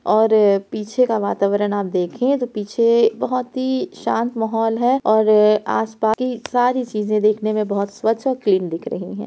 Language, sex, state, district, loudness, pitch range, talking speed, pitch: Hindi, female, Uttar Pradesh, Etah, -19 LUFS, 205-245 Hz, 180 wpm, 220 Hz